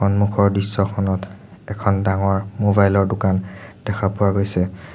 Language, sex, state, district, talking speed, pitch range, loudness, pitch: Assamese, male, Assam, Sonitpur, 120 wpm, 95-100 Hz, -19 LUFS, 100 Hz